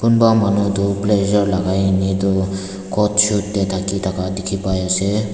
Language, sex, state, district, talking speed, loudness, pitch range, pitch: Nagamese, male, Nagaland, Dimapur, 170 wpm, -17 LUFS, 95-105 Hz, 100 Hz